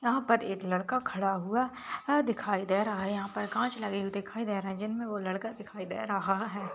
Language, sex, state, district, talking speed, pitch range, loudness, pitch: Hindi, female, Maharashtra, Nagpur, 240 wpm, 195-230 Hz, -32 LUFS, 205 Hz